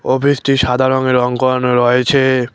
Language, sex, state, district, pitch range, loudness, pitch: Bengali, male, West Bengal, Cooch Behar, 125-130 Hz, -13 LUFS, 130 Hz